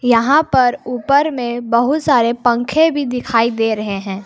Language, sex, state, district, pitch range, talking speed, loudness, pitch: Hindi, female, Jharkhand, Palamu, 230-280 Hz, 170 wpm, -15 LUFS, 245 Hz